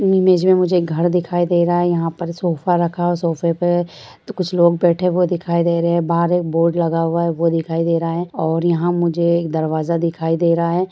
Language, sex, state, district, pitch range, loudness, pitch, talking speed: Hindi, female, Bihar, Jahanabad, 165-175 Hz, -17 LUFS, 170 Hz, 245 wpm